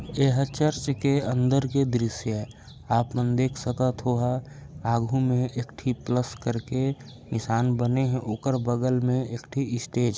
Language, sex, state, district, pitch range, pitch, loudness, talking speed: Chhattisgarhi, male, Chhattisgarh, Raigarh, 120-135 Hz, 125 Hz, -26 LUFS, 160 wpm